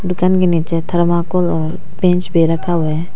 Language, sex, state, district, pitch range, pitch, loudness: Hindi, female, Arunachal Pradesh, Papum Pare, 165-180 Hz, 170 Hz, -16 LUFS